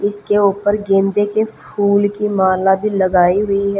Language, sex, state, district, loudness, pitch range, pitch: Hindi, female, Haryana, Jhajjar, -15 LUFS, 195-205 Hz, 200 Hz